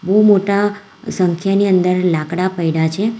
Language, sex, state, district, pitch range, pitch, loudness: Gujarati, female, Gujarat, Valsad, 175-200 Hz, 190 Hz, -15 LUFS